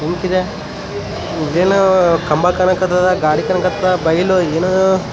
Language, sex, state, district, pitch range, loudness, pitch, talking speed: Kannada, male, Karnataka, Raichur, 165-185 Hz, -15 LUFS, 185 Hz, 140 wpm